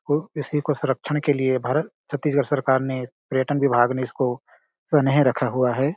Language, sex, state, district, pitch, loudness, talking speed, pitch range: Hindi, male, Chhattisgarh, Balrampur, 140 Hz, -22 LUFS, 190 wpm, 130-150 Hz